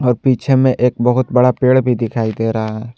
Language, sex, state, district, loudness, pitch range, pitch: Hindi, male, Jharkhand, Ranchi, -15 LUFS, 115-130 Hz, 125 Hz